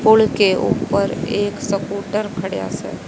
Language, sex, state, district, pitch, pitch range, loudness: Hindi, female, Haryana, Jhajjar, 205 Hz, 200-215 Hz, -19 LUFS